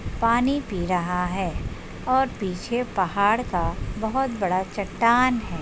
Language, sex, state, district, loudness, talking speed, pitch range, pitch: Hindi, female, Maharashtra, Solapur, -24 LUFS, 130 wpm, 185-245 Hz, 210 Hz